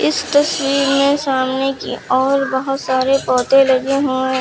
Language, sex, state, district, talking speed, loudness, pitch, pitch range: Hindi, female, Uttar Pradesh, Lucknow, 165 wpm, -16 LUFS, 270 Hz, 260-275 Hz